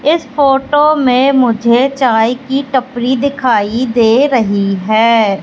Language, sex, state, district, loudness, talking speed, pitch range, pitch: Hindi, female, Madhya Pradesh, Katni, -12 LUFS, 120 wpm, 230-275 Hz, 255 Hz